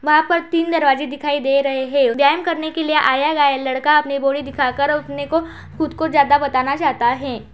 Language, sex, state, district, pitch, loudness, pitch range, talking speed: Hindi, female, Uttar Pradesh, Budaun, 285 Hz, -17 LUFS, 275-305 Hz, 205 wpm